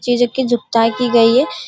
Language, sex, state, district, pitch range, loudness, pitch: Hindi, female, Bihar, Darbhanga, 230-250 Hz, -14 LUFS, 245 Hz